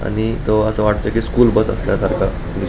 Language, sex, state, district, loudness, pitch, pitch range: Marathi, male, Goa, North and South Goa, -17 LUFS, 110 Hz, 100-110 Hz